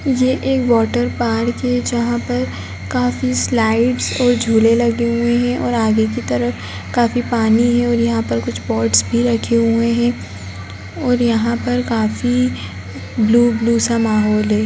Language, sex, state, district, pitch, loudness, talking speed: Hindi, female, Bihar, Jahanabad, 230 Hz, -16 LUFS, 165 wpm